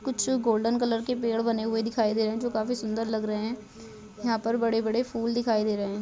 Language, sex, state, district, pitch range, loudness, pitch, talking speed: Hindi, female, Uttar Pradesh, Budaun, 220-235 Hz, -27 LUFS, 225 Hz, 250 wpm